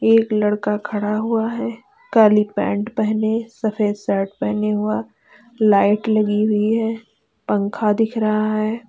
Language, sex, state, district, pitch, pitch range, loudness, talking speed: Hindi, female, Uttar Pradesh, Lalitpur, 215 Hz, 205-220 Hz, -19 LUFS, 135 wpm